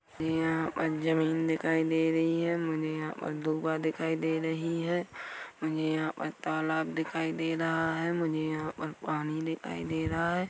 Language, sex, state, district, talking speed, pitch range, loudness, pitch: Hindi, female, Chhattisgarh, Korba, 170 wpm, 155-165 Hz, -31 LUFS, 160 Hz